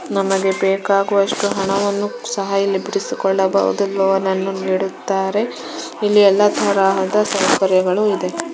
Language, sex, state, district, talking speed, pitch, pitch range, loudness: Kannada, female, Karnataka, Shimoga, 100 wpm, 195 Hz, 195-200 Hz, -17 LUFS